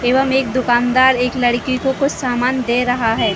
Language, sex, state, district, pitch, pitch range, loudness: Hindi, female, Chhattisgarh, Raigarh, 250 Hz, 240-260 Hz, -16 LUFS